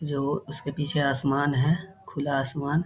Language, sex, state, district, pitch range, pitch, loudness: Hindi, male, Bihar, Jahanabad, 140-150 Hz, 145 Hz, -27 LUFS